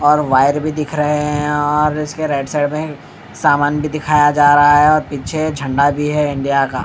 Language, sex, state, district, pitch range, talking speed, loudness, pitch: Hindi, male, Bihar, Katihar, 145-150 Hz, 210 wpm, -15 LUFS, 150 Hz